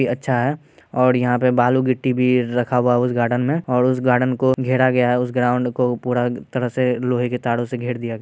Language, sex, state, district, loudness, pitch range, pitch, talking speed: Hindi, male, Bihar, Saharsa, -19 LUFS, 125-130 Hz, 125 Hz, 255 wpm